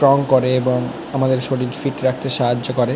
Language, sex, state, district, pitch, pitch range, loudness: Bengali, male, West Bengal, North 24 Parganas, 130 Hz, 125-135 Hz, -18 LUFS